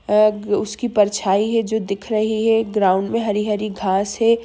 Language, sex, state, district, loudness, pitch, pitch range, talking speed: Hindi, female, Jharkhand, Sahebganj, -19 LUFS, 210 Hz, 200-225 Hz, 160 wpm